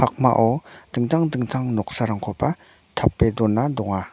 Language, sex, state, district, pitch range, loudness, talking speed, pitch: Garo, male, Meghalaya, North Garo Hills, 105-130 Hz, -22 LUFS, 85 wpm, 115 Hz